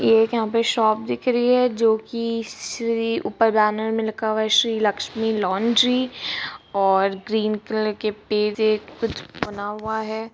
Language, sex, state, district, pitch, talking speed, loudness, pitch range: Hindi, female, Bihar, Kishanganj, 220 Hz, 160 wpm, -22 LUFS, 215-230 Hz